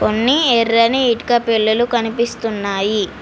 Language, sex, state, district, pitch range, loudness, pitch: Telugu, female, Telangana, Mahabubabad, 220-240 Hz, -16 LUFS, 230 Hz